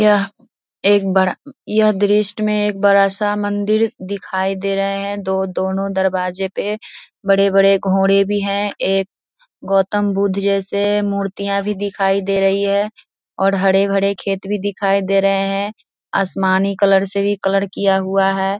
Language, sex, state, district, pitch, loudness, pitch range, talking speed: Hindi, female, Bihar, Vaishali, 195 Hz, -17 LUFS, 195-205 Hz, 145 wpm